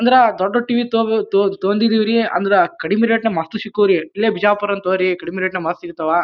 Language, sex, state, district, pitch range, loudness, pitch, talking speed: Kannada, male, Karnataka, Bijapur, 185-225 Hz, -17 LUFS, 205 Hz, 190 wpm